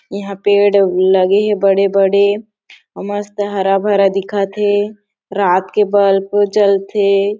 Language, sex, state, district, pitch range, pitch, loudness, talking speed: Chhattisgarhi, female, Chhattisgarh, Sarguja, 195-205 Hz, 200 Hz, -14 LUFS, 130 wpm